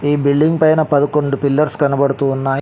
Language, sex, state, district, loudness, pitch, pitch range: Telugu, male, Telangana, Mahabubabad, -15 LUFS, 145 Hz, 140-150 Hz